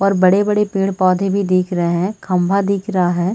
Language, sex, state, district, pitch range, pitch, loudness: Hindi, female, Chhattisgarh, Sarguja, 185-200 Hz, 195 Hz, -16 LUFS